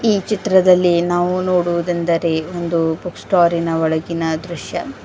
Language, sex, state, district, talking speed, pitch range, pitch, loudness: Kannada, female, Karnataka, Bidar, 120 wpm, 165-180 Hz, 175 Hz, -17 LUFS